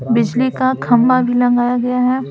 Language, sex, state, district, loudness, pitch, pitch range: Hindi, female, Bihar, Patna, -15 LUFS, 245 Hz, 240-255 Hz